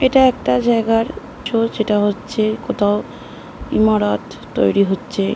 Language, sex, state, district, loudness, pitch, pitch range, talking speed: Bengali, female, West Bengal, North 24 Parganas, -17 LUFS, 215 Hz, 195-235 Hz, 110 wpm